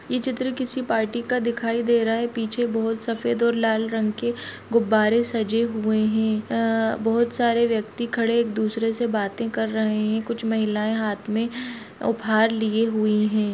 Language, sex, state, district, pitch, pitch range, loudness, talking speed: Hindi, female, Jharkhand, Jamtara, 225 Hz, 220-235 Hz, -23 LUFS, 185 wpm